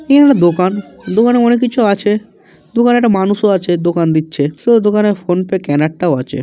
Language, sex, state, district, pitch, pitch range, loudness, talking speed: Bengali, male, West Bengal, Kolkata, 195 Hz, 175-230 Hz, -13 LUFS, 185 wpm